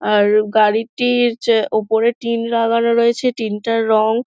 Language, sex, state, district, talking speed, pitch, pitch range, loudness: Bengali, female, West Bengal, Dakshin Dinajpur, 140 wpm, 230 Hz, 220-235 Hz, -16 LUFS